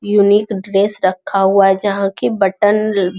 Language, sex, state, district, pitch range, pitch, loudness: Hindi, male, Bihar, Jamui, 195-205 Hz, 200 Hz, -14 LUFS